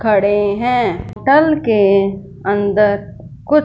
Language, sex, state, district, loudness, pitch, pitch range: Hindi, female, Punjab, Fazilka, -15 LUFS, 210 Hz, 200-250 Hz